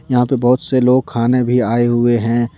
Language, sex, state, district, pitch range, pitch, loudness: Hindi, male, Jharkhand, Deoghar, 120-125 Hz, 120 Hz, -15 LUFS